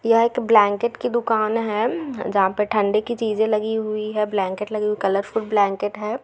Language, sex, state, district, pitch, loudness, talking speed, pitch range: Hindi, female, Bihar, Gaya, 215 Hz, -21 LUFS, 180 wpm, 210-230 Hz